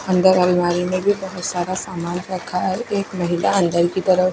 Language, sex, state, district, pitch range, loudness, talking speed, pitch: Hindi, female, Punjab, Fazilka, 175-185 Hz, -19 LUFS, 195 wpm, 185 Hz